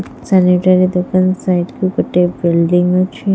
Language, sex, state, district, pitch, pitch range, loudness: Odia, female, Odisha, Khordha, 185 Hz, 180-185 Hz, -14 LUFS